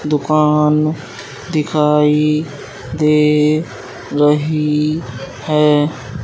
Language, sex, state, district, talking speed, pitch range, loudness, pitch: Hindi, male, Madhya Pradesh, Katni, 50 wpm, 145-155 Hz, -15 LUFS, 150 Hz